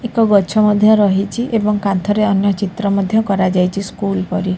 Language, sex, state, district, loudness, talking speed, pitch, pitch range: Odia, female, Odisha, Khordha, -15 LUFS, 155 wpm, 200 Hz, 195-215 Hz